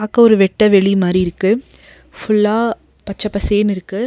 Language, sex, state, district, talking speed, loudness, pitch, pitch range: Tamil, female, Tamil Nadu, Nilgiris, 145 wpm, -15 LUFS, 205 Hz, 195-215 Hz